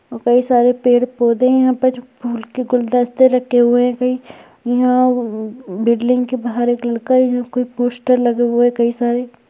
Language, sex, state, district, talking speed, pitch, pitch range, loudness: Hindi, female, Bihar, Saharsa, 170 wpm, 245 Hz, 240-250 Hz, -15 LUFS